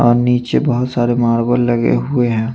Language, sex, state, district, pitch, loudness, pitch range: Hindi, male, Chandigarh, Chandigarh, 120 Hz, -15 LUFS, 115-125 Hz